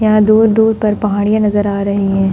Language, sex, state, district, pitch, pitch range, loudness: Hindi, female, Uttar Pradesh, Hamirpur, 210 Hz, 200-215 Hz, -13 LUFS